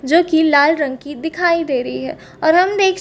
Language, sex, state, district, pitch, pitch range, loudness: Hindi, female, Chhattisgarh, Bastar, 320 Hz, 285-350 Hz, -16 LUFS